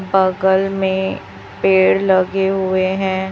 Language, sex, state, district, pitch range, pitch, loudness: Hindi, female, Chhattisgarh, Raipur, 185-190 Hz, 190 Hz, -16 LUFS